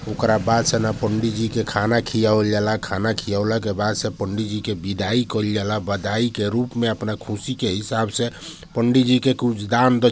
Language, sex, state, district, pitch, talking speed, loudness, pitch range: Bhojpuri, male, Bihar, Gopalganj, 110 Hz, 220 wpm, -21 LUFS, 105-120 Hz